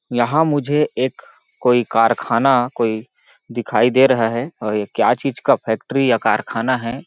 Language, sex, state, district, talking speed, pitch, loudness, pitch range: Hindi, male, Chhattisgarh, Balrampur, 160 wpm, 120 Hz, -18 LUFS, 115-130 Hz